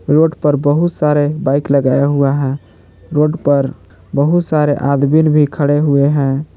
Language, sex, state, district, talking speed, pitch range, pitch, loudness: Hindi, male, Jharkhand, Palamu, 155 wpm, 140-150 Hz, 145 Hz, -14 LUFS